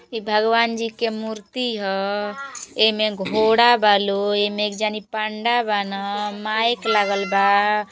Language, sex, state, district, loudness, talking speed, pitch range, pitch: Bhojpuri, female, Uttar Pradesh, Gorakhpur, -20 LUFS, 135 wpm, 205-225 Hz, 215 Hz